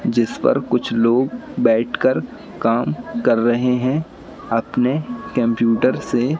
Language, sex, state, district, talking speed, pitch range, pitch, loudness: Hindi, male, Madhya Pradesh, Katni, 110 wpm, 115-130 Hz, 120 Hz, -19 LUFS